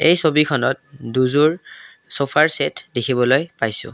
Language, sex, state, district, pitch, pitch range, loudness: Assamese, male, Assam, Kamrup Metropolitan, 140 Hz, 125-155 Hz, -18 LUFS